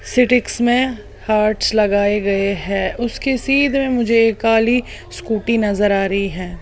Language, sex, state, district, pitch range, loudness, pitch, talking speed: Hindi, female, Odisha, Sambalpur, 205-240 Hz, -17 LUFS, 225 Hz, 155 wpm